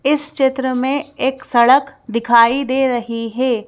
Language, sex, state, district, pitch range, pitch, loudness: Hindi, female, Madhya Pradesh, Bhopal, 235-270 Hz, 260 Hz, -16 LUFS